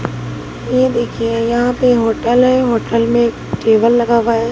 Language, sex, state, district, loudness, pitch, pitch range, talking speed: Hindi, female, Bihar, Katihar, -14 LUFS, 235 Hz, 230-240 Hz, 160 wpm